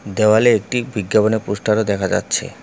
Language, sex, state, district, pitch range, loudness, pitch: Bengali, male, West Bengal, Cooch Behar, 100-110 Hz, -17 LUFS, 105 Hz